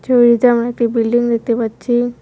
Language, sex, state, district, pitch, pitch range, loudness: Bengali, female, West Bengal, Cooch Behar, 240 Hz, 235-245 Hz, -15 LUFS